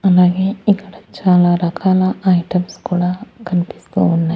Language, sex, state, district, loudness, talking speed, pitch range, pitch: Telugu, female, Andhra Pradesh, Annamaya, -16 LUFS, 110 wpm, 175-190 Hz, 180 Hz